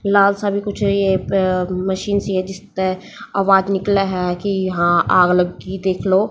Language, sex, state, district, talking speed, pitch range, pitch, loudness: Hindi, female, Haryana, Jhajjar, 200 wpm, 185-200 Hz, 190 Hz, -18 LUFS